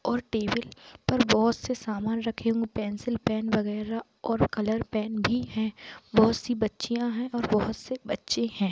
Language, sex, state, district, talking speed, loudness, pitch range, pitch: Hindi, male, Jharkhand, Jamtara, 180 wpm, -28 LUFS, 215-235 Hz, 225 Hz